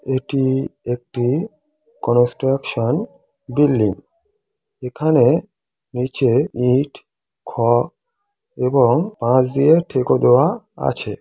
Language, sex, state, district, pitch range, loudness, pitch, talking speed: Bengali, male, West Bengal, Kolkata, 125-190 Hz, -18 LUFS, 135 Hz, 75 wpm